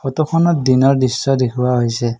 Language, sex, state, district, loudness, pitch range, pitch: Assamese, male, Assam, Kamrup Metropolitan, -15 LUFS, 125-140 Hz, 130 Hz